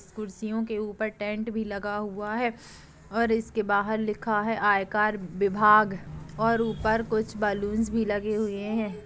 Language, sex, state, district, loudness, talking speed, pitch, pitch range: Hindi, male, Chhattisgarh, Kabirdham, -27 LUFS, 150 wpm, 215 Hz, 205-220 Hz